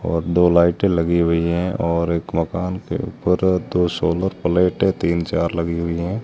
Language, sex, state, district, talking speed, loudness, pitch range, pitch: Hindi, male, Rajasthan, Jaisalmer, 185 wpm, -19 LUFS, 85-90 Hz, 85 Hz